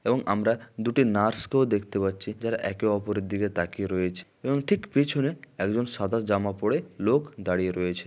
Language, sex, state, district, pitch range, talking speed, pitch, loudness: Bengali, male, West Bengal, Malda, 100-120 Hz, 165 wpm, 105 Hz, -27 LUFS